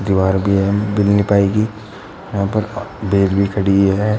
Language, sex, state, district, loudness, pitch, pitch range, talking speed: Hindi, male, Uttar Pradesh, Shamli, -16 LUFS, 100 Hz, 100-105 Hz, 100 wpm